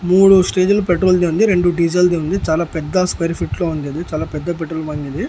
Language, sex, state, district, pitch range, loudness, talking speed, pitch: Telugu, male, Andhra Pradesh, Annamaya, 160-185 Hz, -16 LUFS, 240 wpm, 170 Hz